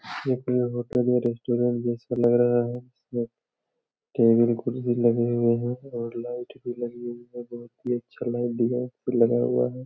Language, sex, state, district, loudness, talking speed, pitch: Hindi, male, Jharkhand, Jamtara, -25 LUFS, 170 wpm, 120 Hz